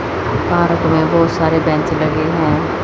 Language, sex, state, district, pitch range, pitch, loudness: Hindi, female, Chandigarh, Chandigarh, 155-165 Hz, 160 Hz, -15 LUFS